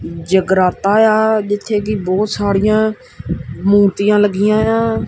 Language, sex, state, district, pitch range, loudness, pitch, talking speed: Punjabi, male, Punjab, Kapurthala, 190-215 Hz, -14 LUFS, 205 Hz, 130 wpm